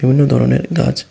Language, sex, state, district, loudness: Bengali, male, Tripura, West Tripura, -14 LUFS